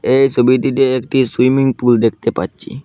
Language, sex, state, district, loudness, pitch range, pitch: Bengali, male, Assam, Hailakandi, -14 LUFS, 120-135 Hz, 130 Hz